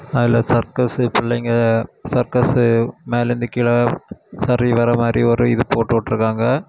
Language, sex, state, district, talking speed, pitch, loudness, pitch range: Tamil, male, Tamil Nadu, Kanyakumari, 115 wpm, 120 Hz, -17 LUFS, 115-125 Hz